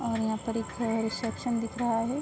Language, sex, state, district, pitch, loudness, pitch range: Hindi, female, Uttar Pradesh, Muzaffarnagar, 230 Hz, -30 LUFS, 225-235 Hz